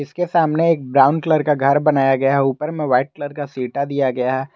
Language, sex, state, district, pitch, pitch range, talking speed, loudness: Hindi, male, Jharkhand, Garhwa, 140 Hz, 135-155 Hz, 250 wpm, -18 LUFS